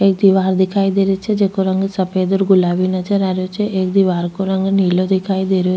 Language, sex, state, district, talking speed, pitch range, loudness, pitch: Rajasthani, female, Rajasthan, Nagaur, 240 wpm, 185-195 Hz, -16 LUFS, 190 Hz